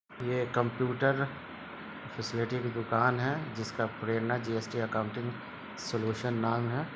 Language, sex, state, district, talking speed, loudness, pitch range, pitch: Hindi, male, Jharkhand, Sahebganj, 110 wpm, -32 LUFS, 115-125 Hz, 120 Hz